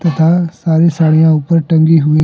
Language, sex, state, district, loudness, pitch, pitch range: Hindi, male, Jharkhand, Deoghar, -11 LUFS, 160 Hz, 160-165 Hz